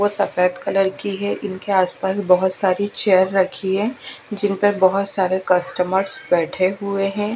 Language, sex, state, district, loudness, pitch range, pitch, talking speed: Hindi, female, Bihar, West Champaran, -19 LUFS, 185-200 Hz, 195 Hz, 155 wpm